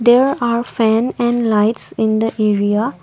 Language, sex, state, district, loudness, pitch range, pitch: English, female, Assam, Kamrup Metropolitan, -15 LUFS, 215-240 Hz, 225 Hz